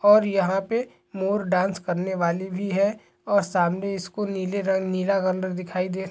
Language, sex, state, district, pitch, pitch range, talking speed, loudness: Hindi, male, Chhattisgarh, Balrampur, 190 Hz, 185-200 Hz, 175 wpm, -24 LUFS